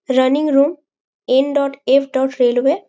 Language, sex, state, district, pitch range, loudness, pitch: Bengali, female, West Bengal, Jalpaiguri, 260-285 Hz, -16 LUFS, 275 Hz